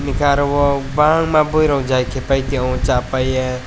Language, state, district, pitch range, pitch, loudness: Kokborok, Tripura, West Tripura, 130-145 Hz, 135 Hz, -17 LUFS